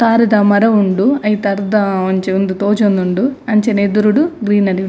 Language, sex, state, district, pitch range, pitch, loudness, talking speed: Tulu, female, Karnataka, Dakshina Kannada, 195-220 Hz, 205 Hz, -13 LUFS, 145 wpm